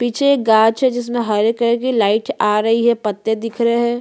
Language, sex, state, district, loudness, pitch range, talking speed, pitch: Hindi, female, Chhattisgarh, Bastar, -16 LUFS, 220-240 Hz, 240 wpm, 235 Hz